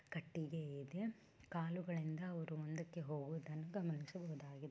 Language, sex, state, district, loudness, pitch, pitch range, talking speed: Kannada, female, Karnataka, Bellary, -47 LUFS, 160 Hz, 155-170 Hz, 90 wpm